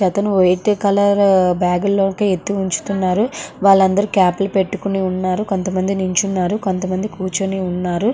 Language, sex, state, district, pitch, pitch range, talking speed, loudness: Telugu, female, Andhra Pradesh, Srikakulam, 195 Hz, 185-200 Hz, 135 wpm, -17 LUFS